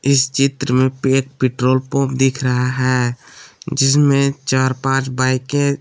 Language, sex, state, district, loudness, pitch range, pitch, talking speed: Hindi, male, Jharkhand, Palamu, -17 LUFS, 130-140 Hz, 135 Hz, 135 wpm